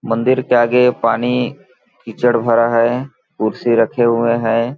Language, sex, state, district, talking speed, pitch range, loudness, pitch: Hindi, male, Chhattisgarh, Balrampur, 140 wpm, 115-125 Hz, -15 LUFS, 120 Hz